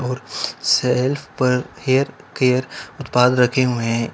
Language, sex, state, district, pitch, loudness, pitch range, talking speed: Hindi, male, Uttar Pradesh, Lalitpur, 125 Hz, -19 LUFS, 125-130 Hz, 100 wpm